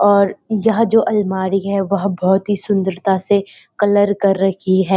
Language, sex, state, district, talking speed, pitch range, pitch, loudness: Hindi, female, Uttarakhand, Uttarkashi, 170 wpm, 190-205 Hz, 200 Hz, -16 LUFS